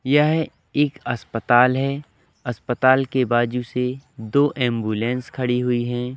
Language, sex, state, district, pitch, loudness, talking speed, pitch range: Hindi, male, Madhya Pradesh, Katni, 125 Hz, -21 LUFS, 125 wpm, 120-135 Hz